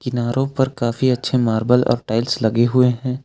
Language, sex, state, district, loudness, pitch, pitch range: Hindi, male, Jharkhand, Ranchi, -18 LUFS, 125 Hz, 120-130 Hz